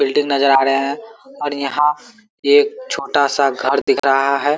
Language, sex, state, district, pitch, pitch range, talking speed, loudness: Hindi, female, Bihar, Kishanganj, 145 Hz, 140-230 Hz, 185 wpm, -16 LUFS